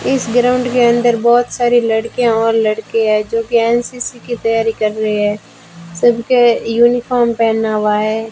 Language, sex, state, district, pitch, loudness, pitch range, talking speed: Hindi, female, Rajasthan, Bikaner, 230 Hz, -14 LUFS, 220-240 Hz, 165 wpm